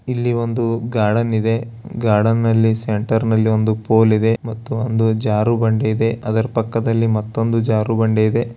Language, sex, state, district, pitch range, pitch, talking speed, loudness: Kannada, male, Karnataka, Bellary, 110-115 Hz, 115 Hz, 145 wpm, -18 LUFS